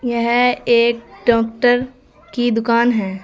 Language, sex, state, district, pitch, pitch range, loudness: Hindi, female, Uttar Pradesh, Saharanpur, 235 Hz, 230-245 Hz, -16 LUFS